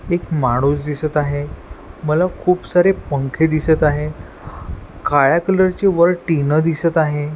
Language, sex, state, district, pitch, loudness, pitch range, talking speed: Marathi, male, Maharashtra, Washim, 155 Hz, -17 LUFS, 145-175 Hz, 130 wpm